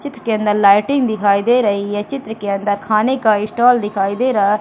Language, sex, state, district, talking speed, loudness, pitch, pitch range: Hindi, female, Madhya Pradesh, Katni, 235 wpm, -16 LUFS, 215 Hz, 205-245 Hz